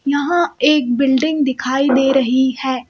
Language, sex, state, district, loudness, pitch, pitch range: Hindi, female, Madhya Pradesh, Bhopal, -16 LUFS, 270 Hz, 260-285 Hz